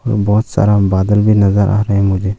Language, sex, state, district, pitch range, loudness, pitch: Hindi, male, Arunachal Pradesh, Longding, 100-105 Hz, -13 LUFS, 100 Hz